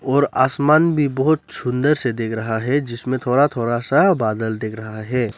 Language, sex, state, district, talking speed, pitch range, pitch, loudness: Hindi, male, Arunachal Pradesh, Lower Dibang Valley, 190 wpm, 115-140 Hz, 125 Hz, -19 LUFS